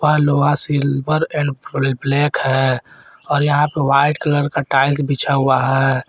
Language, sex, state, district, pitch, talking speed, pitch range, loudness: Hindi, male, Jharkhand, Garhwa, 140 Hz, 165 wpm, 135-145 Hz, -17 LUFS